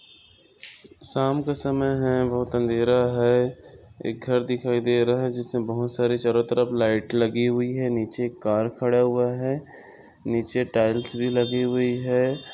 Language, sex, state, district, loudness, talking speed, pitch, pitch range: Hindi, male, Maharashtra, Sindhudurg, -24 LUFS, 155 wpm, 125 Hz, 120-125 Hz